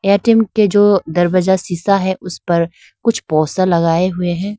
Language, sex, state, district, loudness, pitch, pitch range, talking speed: Hindi, female, Arunachal Pradesh, Lower Dibang Valley, -15 LUFS, 185 Hz, 175-200 Hz, 170 wpm